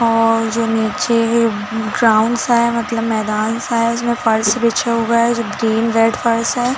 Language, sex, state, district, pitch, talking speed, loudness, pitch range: Hindi, female, Chhattisgarh, Rajnandgaon, 230 Hz, 175 wpm, -16 LUFS, 220-235 Hz